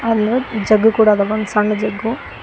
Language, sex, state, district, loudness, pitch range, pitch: Kannada, female, Karnataka, Koppal, -16 LUFS, 210-225 Hz, 215 Hz